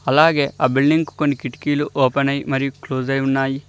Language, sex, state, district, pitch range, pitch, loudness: Telugu, male, Telangana, Mahabubabad, 135-145 Hz, 140 Hz, -19 LUFS